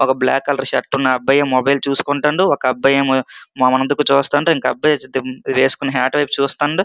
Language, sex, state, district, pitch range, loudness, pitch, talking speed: Telugu, male, Andhra Pradesh, Srikakulam, 130-145 Hz, -16 LUFS, 135 Hz, 165 wpm